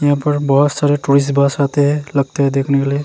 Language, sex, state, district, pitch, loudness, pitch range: Hindi, male, Uttarakhand, Tehri Garhwal, 140 Hz, -15 LUFS, 140-145 Hz